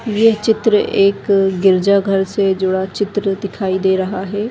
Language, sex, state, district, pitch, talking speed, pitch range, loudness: Hindi, female, Rajasthan, Nagaur, 195 Hz, 160 wpm, 190-205 Hz, -15 LUFS